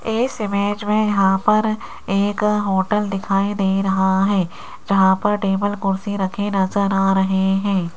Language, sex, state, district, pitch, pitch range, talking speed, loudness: Hindi, female, Rajasthan, Jaipur, 195 Hz, 190-205 Hz, 150 wpm, -19 LUFS